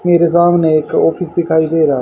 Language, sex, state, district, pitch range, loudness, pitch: Hindi, male, Haryana, Charkhi Dadri, 160-175 Hz, -13 LUFS, 165 Hz